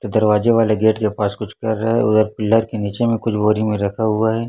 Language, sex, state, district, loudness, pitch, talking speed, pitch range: Hindi, male, Chhattisgarh, Raipur, -18 LUFS, 110 Hz, 265 wpm, 105-110 Hz